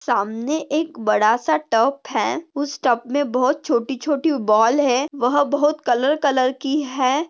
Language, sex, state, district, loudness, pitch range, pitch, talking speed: Hindi, female, Maharashtra, Pune, -20 LUFS, 245-295 Hz, 275 Hz, 165 wpm